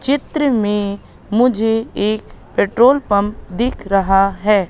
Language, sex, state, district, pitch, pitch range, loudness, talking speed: Hindi, female, Madhya Pradesh, Katni, 215 Hz, 200-245 Hz, -16 LUFS, 115 wpm